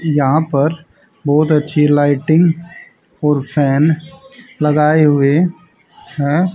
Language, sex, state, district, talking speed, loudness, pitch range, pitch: Hindi, male, Haryana, Charkhi Dadri, 90 wpm, -14 LUFS, 145-170 Hz, 155 Hz